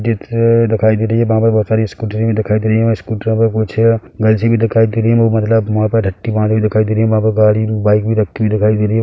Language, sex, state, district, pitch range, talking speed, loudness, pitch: Hindi, male, Chhattisgarh, Bilaspur, 110-115 Hz, 300 wpm, -14 LUFS, 110 Hz